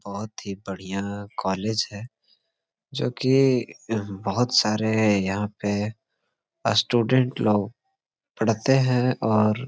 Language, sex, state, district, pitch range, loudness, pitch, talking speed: Hindi, male, Jharkhand, Sahebganj, 100-125 Hz, -24 LUFS, 110 Hz, 105 wpm